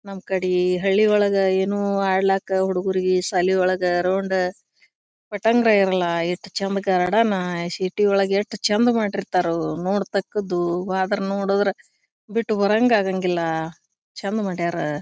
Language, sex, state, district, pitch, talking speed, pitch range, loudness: Kannada, female, Karnataka, Bijapur, 190 Hz, 110 wpm, 180-200 Hz, -21 LUFS